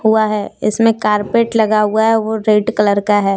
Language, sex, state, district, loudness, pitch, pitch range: Hindi, female, Jharkhand, Deoghar, -14 LUFS, 215 Hz, 210-220 Hz